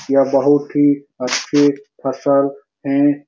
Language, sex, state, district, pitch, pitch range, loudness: Hindi, male, Bihar, Supaul, 140 Hz, 140-145 Hz, -17 LUFS